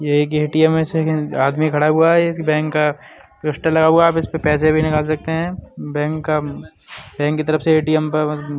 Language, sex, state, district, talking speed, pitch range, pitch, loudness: Bundeli, male, Uttar Pradesh, Budaun, 210 wpm, 150-160 Hz, 155 Hz, -17 LUFS